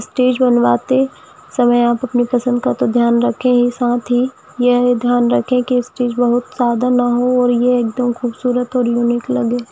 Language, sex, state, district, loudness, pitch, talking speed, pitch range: Hindi, female, Jharkhand, Jamtara, -15 LUFS, 245 Hz, 180 wpm, 240-250 Hz